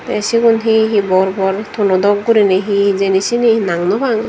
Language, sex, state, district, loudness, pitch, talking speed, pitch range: Chakma, female, Tripura, Dhalai, -13 LUFS, 205 Hz, 170 wpm, 195-225 Hz